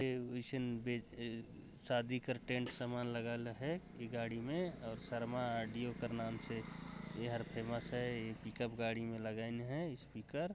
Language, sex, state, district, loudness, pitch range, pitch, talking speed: Chhattisgarhi, male, Chhattisgarh, Jashpur, -42 LUFS, 115-125 Hz, 120 Hz, 170 wpm